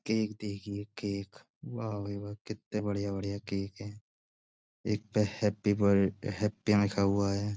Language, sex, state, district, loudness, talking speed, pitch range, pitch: Hindi, male, Uttar Pradesh, Budaun, -32 LUFS, 160 wpm, 100-105 Hz, 105 Hz